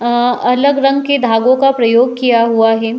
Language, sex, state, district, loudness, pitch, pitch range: Hindi, female, Uttar Pradesh, Jalaun, -12 LUFS, 245 Hz, 230-270 Hz